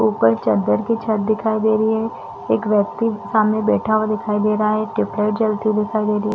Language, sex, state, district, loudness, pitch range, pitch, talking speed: Hindi, female, Chhattisgarh, Raigarh, -19 LUFS, 210-220 Hz, 215 Hz, 210 wpm